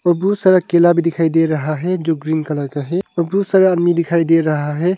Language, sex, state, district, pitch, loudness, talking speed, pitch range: Hindi, male, Arunachal Pradesh, Longding, 170 Hz, -16 LUFS, 255 wpm, 160-180 Hz